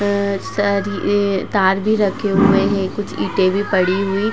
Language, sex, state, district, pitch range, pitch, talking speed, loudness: Hindi, female, Uttar Pradesh, Jalaun, 190-205 Hz, 200 Hz, 180 wpm, -17 LUFS